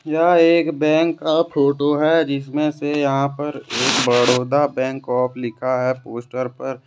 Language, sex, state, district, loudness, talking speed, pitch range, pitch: Hindi, male, Jharkhand, Deoghar, -19 LUFS, 155 wpm, 130-155 Hz, 140 Hz